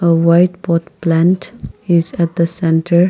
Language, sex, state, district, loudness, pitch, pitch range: English, female, Nagaland, Kohima, -14 LUFS, 170 Hz, 165-175 Hz